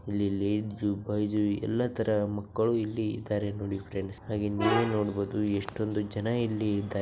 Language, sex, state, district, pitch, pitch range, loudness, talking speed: Kannada, male, Karnataka, Bijapur, 105 Hz, 100-110 Hz, -30 LUFS, 85 wpm